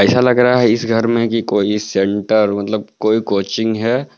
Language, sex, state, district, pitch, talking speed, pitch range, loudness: Hindi, male, Jharkhand, Palamu, 110 Hz, 200 wpm, 105-115 Hz, -15 LUFS